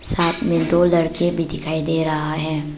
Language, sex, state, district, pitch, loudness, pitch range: Hindi, female, Arunachal Pradesh, Papum Pare, 160 Hz, -18 LUFS, 155-170 Hz